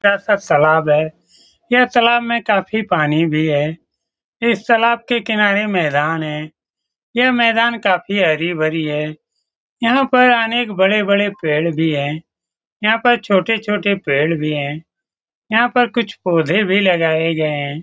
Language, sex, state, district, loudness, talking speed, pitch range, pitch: Hindi, male, Bihar, Saran, -16 LUFS, 150 wpm, 155-230 Hz, 195 Hz